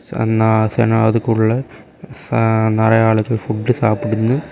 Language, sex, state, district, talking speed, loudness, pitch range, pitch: Tamil, male, Tamil Nadu, Kanyakumari, 105 wpm, -16 LUFS, 110-115 Hz, 110 Hz